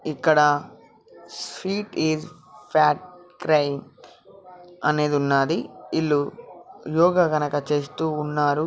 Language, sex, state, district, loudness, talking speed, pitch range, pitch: Telugu, male, Telangana, Karimnagar, -23 LUFS, 85 wpm, 145-175 Hz, 155 Hz